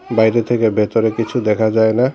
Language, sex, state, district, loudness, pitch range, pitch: Bengali, male, Tripura, Dhalai, -16 LUFS, 110-120 Hz, 110 Hz